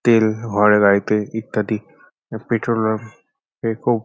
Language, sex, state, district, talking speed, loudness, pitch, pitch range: Bengali, male, West Bengal, North 24 Parganas, 120 wpm, -19 LUFS, 110 Hz, 105-115 Hz